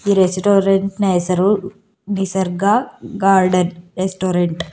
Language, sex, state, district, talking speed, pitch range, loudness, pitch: Kannada, female, Karnataka, Bangalore, 90 wpm, 180-200 Hz, -17 LUFS, 190 Hz